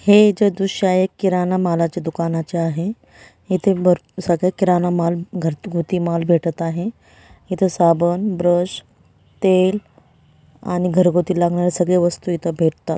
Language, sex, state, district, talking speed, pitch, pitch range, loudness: Marathi, female, Maharashtra, Dhule, 130 wpm, 175 Hz, 170-185 Hz, -18 LUFS